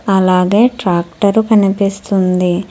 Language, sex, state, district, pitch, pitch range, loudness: Telugu, female, Telangana, Hyderabad, 195 Hz, 180-205 Hz, -13 LUFS